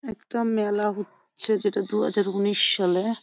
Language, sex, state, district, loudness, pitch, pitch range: Bengali, female, West Bengal, Jhargram, -23 LUFS, 205 Hz, 200-220 Hz